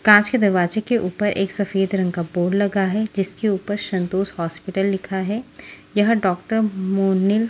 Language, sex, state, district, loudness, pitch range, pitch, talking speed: Hindi, female, Haryana, Jhajjar, -20 LUFS, 190-210 Hz, 195 Hz, 175 wpm